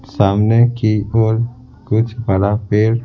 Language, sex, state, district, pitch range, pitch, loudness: Hindi, male, Bihar, Patna, 105-120 Hz, 110 Hz, -16 LUFS